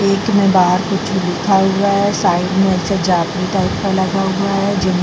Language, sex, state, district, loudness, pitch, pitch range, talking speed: Hindi, female, Bihar, Vaishali, -15 LUFS, 195 Hz, 185-200 Hz, 180 wpm